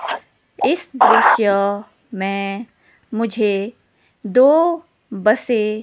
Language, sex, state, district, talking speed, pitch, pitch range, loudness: Hindi, female, Himachal Pradesh, Shimla, 70 wpm, 215 Hz, 200-240 Hz, -17 LUFS